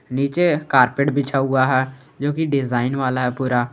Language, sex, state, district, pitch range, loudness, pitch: Hindi, male, Jharkhand, Garhwa, 130-140 Hz, -19 LUFS, 135 Hz